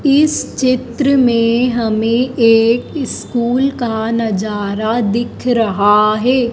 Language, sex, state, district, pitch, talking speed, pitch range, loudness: Hindi, female, Madhya Pradesh, Dhar, 235 Hz, 100 wpm, 220-255 Hz, -14 LUFS